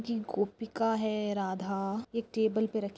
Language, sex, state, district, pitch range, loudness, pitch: Hindi, female, Maharashtra, Nagpur, 200-225 Hz, -32 LUFS, 215 Hz